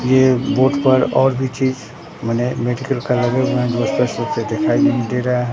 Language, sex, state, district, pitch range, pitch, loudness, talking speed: Hindi, male, Bihar, Katihar, 120-130 Hz, 130 Hz, -17 LUFS, 150 wpm